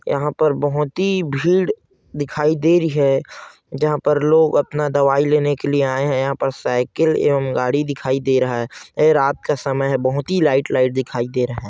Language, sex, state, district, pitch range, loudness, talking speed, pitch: Hindi, male, Chhattisgarh, Korba, 135-150 Hz, -18 LUFS, 200 wpm, 145 Hz